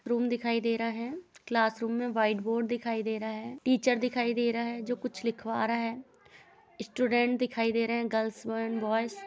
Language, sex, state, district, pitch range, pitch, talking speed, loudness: Hindi, female, Uttar Pradesh, Jalaun, 225-240 Hz, 230 Hz, 205 wpm, -30 LUFS